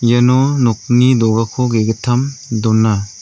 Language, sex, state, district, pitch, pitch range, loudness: Garo, male, Meghalaya, North Garo Hills, 120 Hz, 110-125 Hz, -14 LUFS